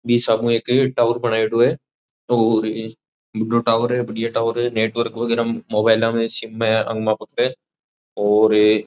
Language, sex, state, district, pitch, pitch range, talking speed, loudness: Rajasthani, male, Rajasthan, Churu, 115 Hz, 110-120 Hz, 160 wpm, -19 LUFS